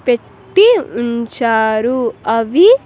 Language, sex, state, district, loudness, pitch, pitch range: Telugu, female, Andhra Pradesh, Sri Satya Sai, -14 LUFS, 235 Hz, 230-345 Hz